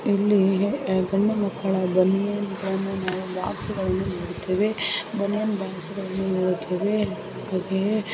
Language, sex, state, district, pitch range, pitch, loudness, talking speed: Kannada, female, Karnataka, Raichur, 185-205 Hz, 195 Hz, -25 LUFS, 145 wpm